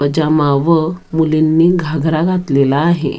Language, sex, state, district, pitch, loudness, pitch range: Marathi, female, Maharashtra, Dhule, 160 Hz, -14 LUFS, 150-170 Hz